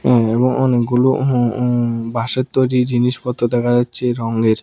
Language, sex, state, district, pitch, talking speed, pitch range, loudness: Bengali, male, Tripura, West Tripura, 120 Hz, 140 wpm, 120-125 Hz, -17 LUFS